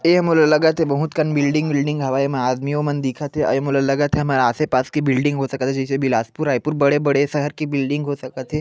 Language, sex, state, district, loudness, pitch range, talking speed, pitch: Chhattisgarhi, male, Chhattisgarh, Bilaspur, -19 LUFS, 135-150 Hz, 250 wpm, 145 Hz